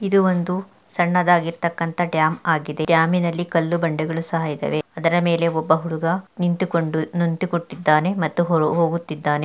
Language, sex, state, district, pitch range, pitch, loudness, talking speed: Kannada, female, Karnataka, Mysore, 160-175 Hz, 170 Hz, -21 LUFS, 140 wpm